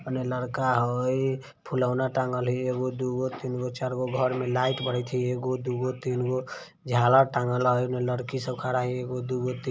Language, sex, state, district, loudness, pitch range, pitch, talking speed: Maithili, male, Bihar, Vaishali, -27 LUFS, 125-130 Hz, 125 Hz, 185 wpm